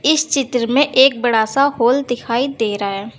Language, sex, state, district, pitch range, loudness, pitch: Hindi, female, Uttar Pradesh, Saharanpur, 230-275 Hz, -16 LUFS, 245 Hz